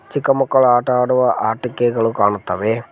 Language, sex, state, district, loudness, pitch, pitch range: Kannada, male, Karnataka, Koppal, -16 LUFS, 120 Hz, 110-130 Hz